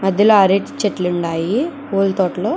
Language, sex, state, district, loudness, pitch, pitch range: Telugu, female, Andhra Pradesh, Chittoor, -16 LUFS, 195 Hz, 180-210 Hz